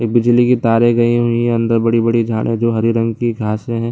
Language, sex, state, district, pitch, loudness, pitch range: Hindi, male, Bihar, Lakhisarai, 115 Hz, -15 LUFS, 115-120 Hz